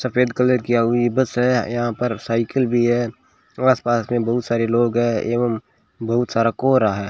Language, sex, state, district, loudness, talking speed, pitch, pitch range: Hindi, male, Rajasthan, Bikaner, -19 LUFS, 185 wpm, 120 Hz, 115-125 Hz